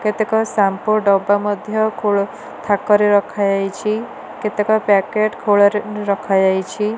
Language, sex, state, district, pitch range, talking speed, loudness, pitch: Odia, female, Odisha, Nuapada, 200-215 Hz, 95 wpm, -17 LUFS, 210 Hz